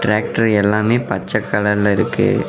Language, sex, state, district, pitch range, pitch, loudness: Tamil, male, Tamil Nadu, Namakkal, 105-110 Hz, 105 Hz, -16 LUFS